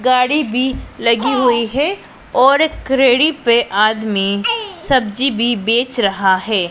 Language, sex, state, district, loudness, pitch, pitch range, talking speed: Hindi, female, Punjab, Pathankot, -15 LUFS, 245 Hz, 220-270 Hz, 135 wpm